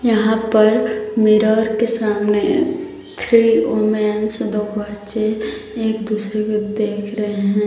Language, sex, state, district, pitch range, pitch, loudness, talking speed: Hindi, female, Jharkhand, Palamu, 210-220 Hz, 215 Hz, -17 LUFS, 115 wpm